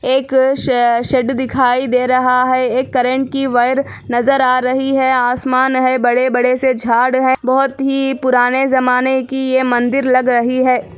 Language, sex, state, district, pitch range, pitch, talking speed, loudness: Hindi, female, Andhra Pradesh, Anantapur, 250-265 Hz, 255 Hz, 170 wpm, -14 LUFS